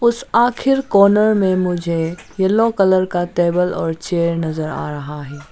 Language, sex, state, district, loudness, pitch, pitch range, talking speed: Hindi, female, Arunachal Pradesh, Lower Dibang Valley, -17 LUFS, 180 Hz, 165-205 Hz, 165 wpm